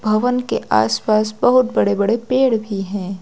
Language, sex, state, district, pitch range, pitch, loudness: Hindi, female, Uttar Pradesh, Lucknow, 195-245 Hz, 215 Hz, -17 LUFS